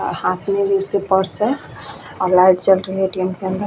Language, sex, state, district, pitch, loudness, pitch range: Hindi, female, Goa, North and South Goa, 190 Hz, -17 LUFS, 185-195 Hz